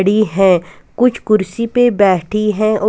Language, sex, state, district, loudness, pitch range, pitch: Hindi, female, Punjab, Kapurthala, -14 LUFS, 195-220 Hz, 215 Hz